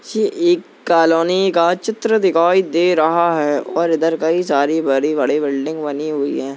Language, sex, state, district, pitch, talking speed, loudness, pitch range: Hindi, male, Uttar Pradesh, Jalaun, 165 Hz, 165 wpm, -16 LUFS, 150-180 Hz